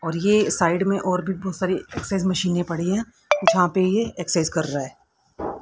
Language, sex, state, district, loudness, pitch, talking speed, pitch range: Hindi, female, Haryana, Rohtak, -22 LUFS, 185 Hz, 190 wpm, 170-195 Hz